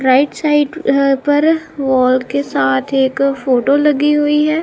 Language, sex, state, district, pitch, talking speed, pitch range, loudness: Hindi, female, Punjab, Kapurthala, 280 Hz, 155 wpm, 265-295 Hz, -14 LUFS